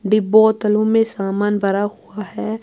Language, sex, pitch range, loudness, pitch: Urdu, female, 205-220 Hz, -17 LUFS, 215 Hz